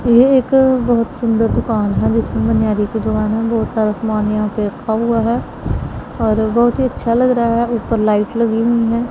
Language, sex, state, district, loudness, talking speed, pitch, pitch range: Hindi, female, Punjab, Pathankot, -16 LUFS, 205 wpm, 225 Hz, 215-235 Hz